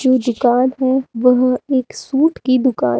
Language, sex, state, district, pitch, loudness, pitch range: Hindi, female, Himachal Pradesh, Shimla, 255 Hz, -16 LUFS, 250-265 Hz